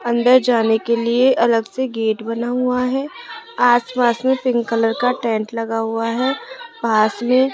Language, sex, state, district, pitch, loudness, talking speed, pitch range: Hindi, female, Rajasthan, Jaipur, 240 Hz, -18 LUFS, 175 wpm, 230-255 Hz